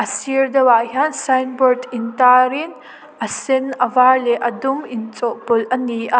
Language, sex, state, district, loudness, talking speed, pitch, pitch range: Mizo, female, Mizoram, Aizawl, -17 LUFS, 195 wpm, 255 Hz, 235-265 Hz